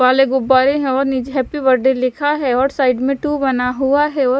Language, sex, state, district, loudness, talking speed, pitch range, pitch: Hindi, male, Punjab, Fazilka, -16 LUFS, 245 wpm, 260-275 Hz, 265 Hz